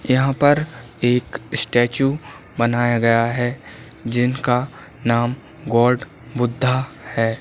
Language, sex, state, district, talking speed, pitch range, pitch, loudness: Hindi, male, Chhattisgarh, Balrampur, 95 wpm, 120-135 Hz, 120 Hz, -19 LUFS